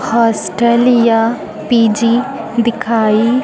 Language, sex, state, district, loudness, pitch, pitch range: Hindi, female, Chhattisgarh, Raipur, -13 LUFS, 235 Hz, 225-240 Hz